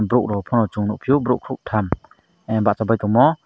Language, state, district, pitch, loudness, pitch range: Kokborok, Tripura, Dhalai, 110 Hz, -20 LUFS, 105-125 Hz